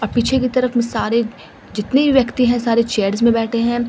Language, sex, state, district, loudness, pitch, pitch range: Hindi, female, Delhi, New Delhi, -17 LUFS, 235 Hz, 230-250 Hz